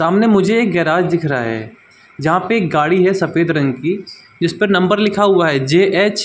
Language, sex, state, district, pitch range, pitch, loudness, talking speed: Hindi, male, Uttar Pradesh, Muzaffarnagar, 165-205 Hz, 180 Hz, -15 LUFS, 220 wpm